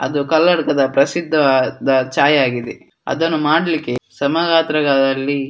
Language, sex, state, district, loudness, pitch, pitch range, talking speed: Kannada, male, Karnataka, Dakshina Kannada, -16 LUFS, 140 Hz, 135-160 Hz, 100 wpm